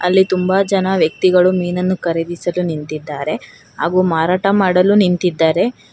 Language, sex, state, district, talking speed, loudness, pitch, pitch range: Kannada, female, Karnataka, Bangalore, 110 wpm, -15 LUFS, 180 Hz, 170-185 Hz